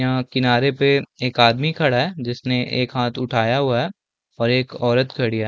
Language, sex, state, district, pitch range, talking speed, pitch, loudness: Hindi, male, Chhattisgarh, Balrampur, 120-135 Hz, 195 wpm, 125 Hz, -19 LUFS